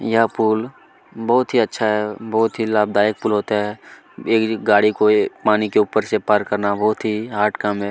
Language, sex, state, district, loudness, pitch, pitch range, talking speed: Hindi, male, Chhattisgarh, Kabirdham, -18 LUFS, 105 Hz, 105-110 Hz, 195 wpm